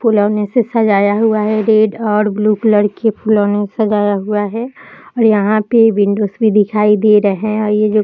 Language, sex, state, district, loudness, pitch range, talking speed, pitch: Hindi, female, Bihar, Jahanabad, -13 LUFS, 205-220 Hz, 200 wpm, 215 Hz